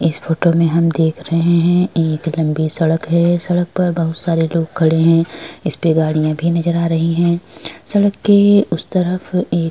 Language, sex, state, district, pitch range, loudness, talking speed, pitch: Hindi, female, Uttar Pradesh, Jalaun, 160-175 Hz, -15 LUFS, 200 wpm, 165 Hz